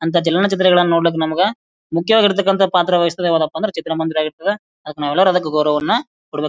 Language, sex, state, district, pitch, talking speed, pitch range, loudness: Kannada, male, Karnataka, Bijapur, 170 Hz, 165 wpm, 160-195 Hz, -16 LUFS